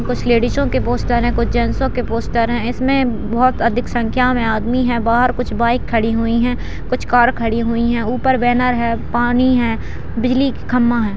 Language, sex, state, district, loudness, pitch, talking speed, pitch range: Hindi, female, Bihar, Kishanganj, -17 LUFS, 235 Hz, 200 wpm, 230-250 Hz